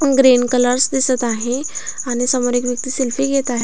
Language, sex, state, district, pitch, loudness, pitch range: Marathi, female, Maharashtra, Aurangabad, 250 Hz, -17 LUFS, 245-265 Hz